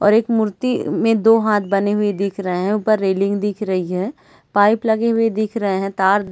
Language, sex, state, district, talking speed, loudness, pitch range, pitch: Hindi, female, Chhattisgarh, Raigarh, 230 wpm, -18 LUFS, 195-220 Hz, 205 Hz